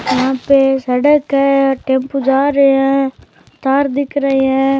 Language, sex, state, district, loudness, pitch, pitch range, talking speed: Rajasthani, male, Rajasthan, Churu, -14 LUFS, 270 Hz, 265-275 Hz, 150 wpm